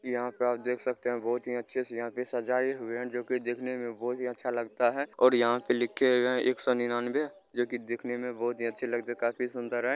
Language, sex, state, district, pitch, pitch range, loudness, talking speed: Hindi, male, Bihar, Gopalganj, 120 Hz, 120-125 Hz, -30 LUFS, 265 wpm